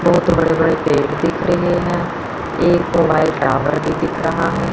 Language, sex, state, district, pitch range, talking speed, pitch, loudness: Hindi, female, Chandigarh, Chandigarh, 160-175 Hz, 180 wpm, 170 Hz, -16 LUFS